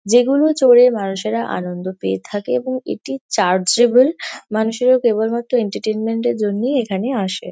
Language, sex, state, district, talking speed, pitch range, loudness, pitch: Bengali, female, West Bengal, Kolkata, 135 wpm, 190-245 Hz, -17 LUFS, 220 Hz